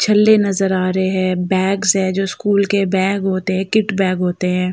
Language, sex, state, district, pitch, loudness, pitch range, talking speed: Hindi, female, Uttar Pradesh, Jalaun, 190 Hz, -16 LUFS, 185-200 Hz, 215 wpm